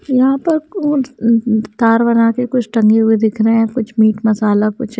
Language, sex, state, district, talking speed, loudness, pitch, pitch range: Hindi, female, Haryana, Charkhi Dadri, 170 wpm, -14 LUFS, 230 Hz, 220-250 Hz